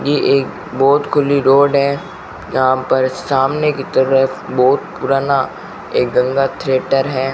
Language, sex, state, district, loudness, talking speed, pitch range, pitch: Hindi, male, Rajasthan, Bikaner, -15 LUFS, 140 wpm, 130-140 Hz, 135 Hz